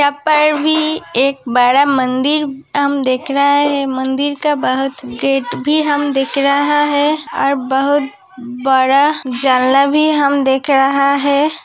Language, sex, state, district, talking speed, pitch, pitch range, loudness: Hindi, female, Uttar Pradesh, Hamirpur, 145 wpm, 280 Hz, 270-290 Hz, -14 LUFS